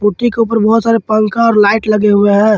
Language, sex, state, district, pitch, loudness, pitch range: Hindi, male, Jharkhand, Ranchi, 215 Hz, -11 LUFS, 210-230 Hz